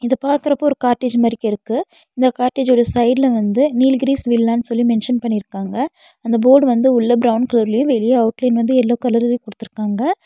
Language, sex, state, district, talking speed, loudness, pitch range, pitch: Tamil, female, Tamil Nadu, Nilgiris, 160 wpm, -16 LUFS, 230-260 Hz, 245 Hz